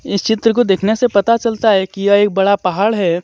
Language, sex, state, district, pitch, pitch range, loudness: Hindi, male, Jharkhand, Deoghar, 205 Hz, 195-220 Hz, -14 LUFS